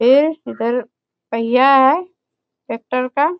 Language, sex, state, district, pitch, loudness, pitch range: Hindi, female, Bihar, Bhagalpur, 260 Hz, -16 LUFS, 245-290 Hz